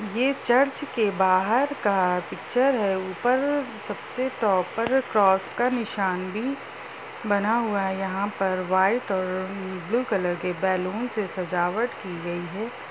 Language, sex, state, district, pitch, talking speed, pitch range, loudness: Hindi, female, Bihar, Darbhanga, 205 Hz, 145 wpm, 185-245 Hz, -25 LUFS